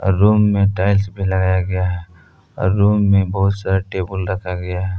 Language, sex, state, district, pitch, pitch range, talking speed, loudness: Hindi, male, Jharkhand, Palamu, 95 Hz, 95-100 Hz, 190 wpm, -17 LUFS